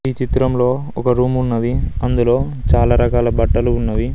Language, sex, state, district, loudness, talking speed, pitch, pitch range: Telugu, male, Telangana, Mahabubabad, -17 LUFS, 145 wpm, 125 Hz, 115-130 Hz